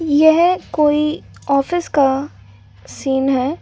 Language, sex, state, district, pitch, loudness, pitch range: Hindi, female, Delhi, New Delhi, 280 Hz, -16 LUFS, 265-310 Hz